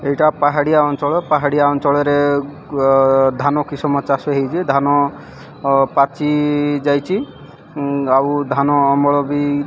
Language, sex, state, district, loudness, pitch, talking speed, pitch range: Odia, male, Odisha, Malkangiri, -16 LUFS, 145 Hz, 125 wpm, 140-145 Hz